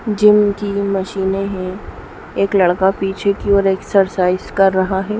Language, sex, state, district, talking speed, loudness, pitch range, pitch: Hindi, female, Bihar, Gopalganj, 150 wpm, -16 LUFS, 190-200 Hz, 195 Hz